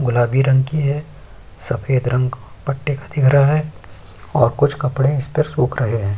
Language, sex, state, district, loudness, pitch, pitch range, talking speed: Hindi, male, Uttar Pradesh, Jyotiba Phule Nagar, -18 LUFS, 130 Hz, 115-145 Hz, 185 wpm